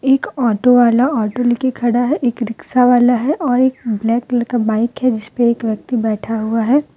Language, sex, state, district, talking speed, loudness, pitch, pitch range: Hindi, female, Jharkhand, Deoghar, 205 wpm, -16 LUFS, 240 Hz, 230-255 Hz